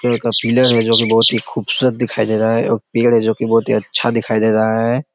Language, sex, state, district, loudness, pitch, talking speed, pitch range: Hindi, male, Chhattisgarh, Raigarh, -15 LUFS, 115 Hz, 300 wpm, 110-120 Hz